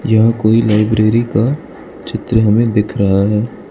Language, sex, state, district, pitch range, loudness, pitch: Hindi, male, Arunachal Pradesh, Lower Dibang Valley, 105-115 Hz, -13 LUFS, 110 Hz